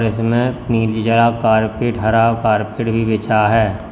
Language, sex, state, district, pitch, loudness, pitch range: Hindi, male, Uttar Pradesh, Lalitpur, 115 Hz, -16 LUFS, 110-115 Hz